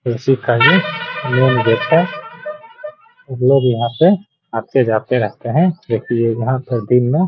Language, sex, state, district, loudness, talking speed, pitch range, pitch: Hindi, male, Bihar, Gaya, -15 LUFS, 155 wpm, 120-175 Hz, 130 Hz